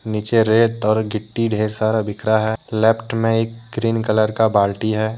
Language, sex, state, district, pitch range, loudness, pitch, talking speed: Hindi, male, Jharkhand, Deoghar, 110-115 Hz, -18 LUFS, 110 Hz, 185 wpm